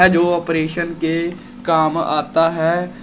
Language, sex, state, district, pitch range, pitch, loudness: Hindi, male, Uttar Pradesh, Shamli, 160-175 Hz, 165 Hz, -18 LUFS